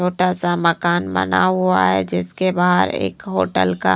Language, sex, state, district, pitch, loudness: Hindi, female, Bihar, Katihar, 95 Hz, -18 LUFS